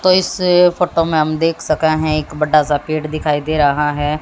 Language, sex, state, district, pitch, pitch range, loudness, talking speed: Hindi, female, Haryana, Jhajjar, 155 Hz, 150-165 Hz, -15 LUFS, 230 wpm